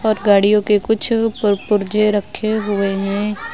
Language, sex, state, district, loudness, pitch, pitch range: Hindi, female, Uttar Pradesh, Lucknow, -17 LUFS, 210 Hz, 200-215 Hz